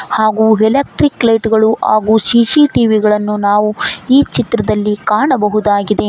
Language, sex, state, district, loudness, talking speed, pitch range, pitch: Kannada, female, Karnataka, Koppal, -12 LUFS, 110 wpm, 210-235 Hz, 220 Hz